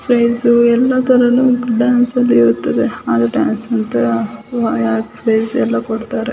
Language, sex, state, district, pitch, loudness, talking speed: Kannada, female, Karnataka, Chamarajanagar, 230 Hz, -14 LUFS, 105 wpm